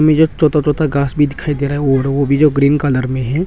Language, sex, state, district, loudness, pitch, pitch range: Hindi, male, Arunachal Pradesh, Longding, -14 LUFS, 145 Hz, 140-150 Hz